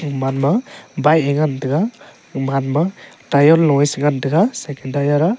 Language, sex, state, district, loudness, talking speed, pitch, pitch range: Wancho, male, Arunachal Pradesh, Longding, -17 LUFS, 190 wpm, 145 Hz, 140-170 Hz